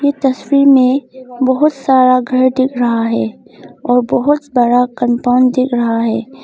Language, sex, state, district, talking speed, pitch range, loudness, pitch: Hindi, female, Arunachal Pradesh, Longding, 150 wpm, 245-265 Hz, -13 LUFS, 255 Hz